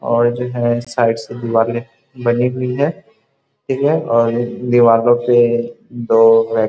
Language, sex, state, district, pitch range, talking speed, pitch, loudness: Hindi, male, Uttar Pradesh, Muzaffarnagar, 115-125 Hz, 125 wpm, 120 Hz, -15 LUFS